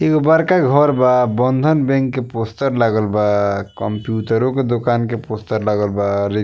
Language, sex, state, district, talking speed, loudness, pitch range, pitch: Bhojpuri, male, Bihar, East Champaran, 160 wpm, -17 LUFS, 105-135 Hz, 115 Hz